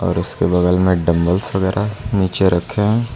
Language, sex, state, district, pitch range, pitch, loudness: Hindi, male, Uttar Pradesh, Lucknow, 90-105 Hz, 95 Hz, -17 LUFS